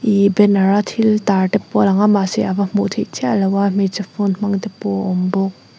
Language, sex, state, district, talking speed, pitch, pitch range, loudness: Mizo, female, Mizoram, Aizawl, 250 wpm, 200 Hz, 195-205 Hz, -16 LUFS